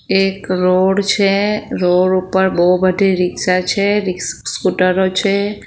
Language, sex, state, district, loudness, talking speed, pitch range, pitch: Gujarati, female, Gujarat, Valsad, -15 LUFS, 115 wpm, 185-200 Hz, 185 Hz